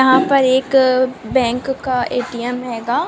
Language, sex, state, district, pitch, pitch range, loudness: Hindi, female, Andhra Pradesh, Anantapur, 255 Hz, 245-260 Hz, -16 LUFS